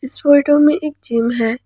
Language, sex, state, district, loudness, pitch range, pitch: Hindi, female, Jharkhand, Ranchi, -14 LUFS, 235-290 Hz, 285 Hz